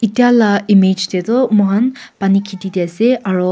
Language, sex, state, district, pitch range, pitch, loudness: Nagamese, female, Nagaland, Kohima, 190-235 Hz, 200 Hz, -14 LUFS